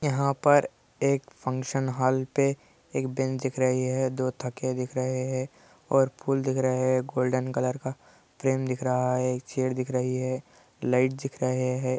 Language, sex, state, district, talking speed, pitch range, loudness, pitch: Hindi, male, Andhra Pradesh, Anantapur, 195 wpm, 130-135 Hz, -27 LUFS, 130 Hz